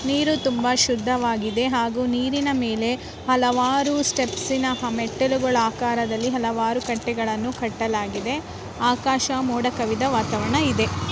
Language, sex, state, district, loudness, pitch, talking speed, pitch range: Kannada, female, Karnataka, Raichur, -22 LUFS, 245 Hz, 95 wpm, 230-260 Hz